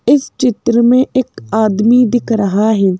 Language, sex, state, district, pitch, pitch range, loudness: Hindi, female, Madhya Pradesh, Bhopal, 235 Hz, 215-250 Hz, -13 LUFS